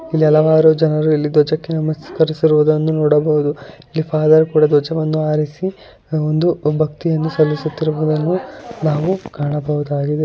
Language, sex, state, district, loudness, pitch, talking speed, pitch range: Kannada, female, Karnataka, Chamarajanagar, -16 LUFS, 155 Hz, 80 wpm, 150-160 Hz